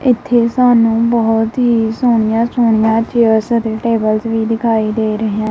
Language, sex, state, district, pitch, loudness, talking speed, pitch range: Punjabi, female, Punjab, Kapurthala, 225 Hz, -13 LUFS, 140 wpm, 220-235 Hz